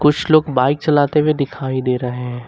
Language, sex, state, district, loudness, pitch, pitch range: Hindi, male, Jharkhand, Ranchi, -17 LUFS, 140 Hz, 125-150 Hz